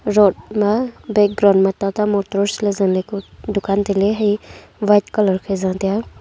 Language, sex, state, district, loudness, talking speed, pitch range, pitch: Wancho, female, Arunachal Pradesh, Longding, -18 LUFS, 95 wpm, 195-210 Hz, 205 Hz